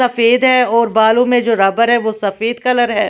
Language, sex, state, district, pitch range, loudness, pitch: Hindi, female, Maharashtra, Washim, 225-245 Hz, -13 LUFS, 235 Hz